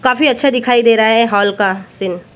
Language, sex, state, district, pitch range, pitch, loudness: Hindi, female, Maharashtra, Mumbai Suburban, 200-250 Hz, 225 Hz, -13 LUFS